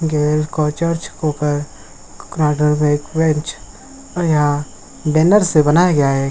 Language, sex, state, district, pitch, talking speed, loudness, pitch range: Hindi, male, Jharkhand, Sahebganj, 150 Hz, 55 wpm, -16 LUFS, 150-160 Hz